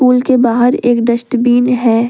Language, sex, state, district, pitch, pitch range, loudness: Hindi, female, Jharkhand, Deoghar, 245 Hz, 235-250 Hz, -12 LUFS